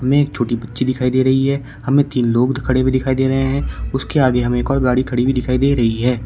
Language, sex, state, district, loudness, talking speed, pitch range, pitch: Hindi, male, Uttar Pradesh, Shamli, -17 LUFS, 280 wpm, 125-135 Hz, 130 Hz